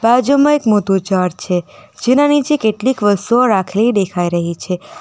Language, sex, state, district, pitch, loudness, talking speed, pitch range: Gujarati, female, Gujarat, Valsad, 210 Hz, -15 LUFS, 155 wpm, 185-250 Hz